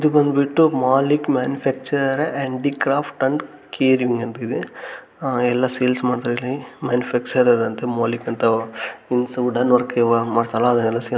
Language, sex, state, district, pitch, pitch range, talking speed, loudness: Kannada, male, Karnataka, Gulbarga, 125 Hz, 120-135 Hz, 130 wpm, -20 LUFS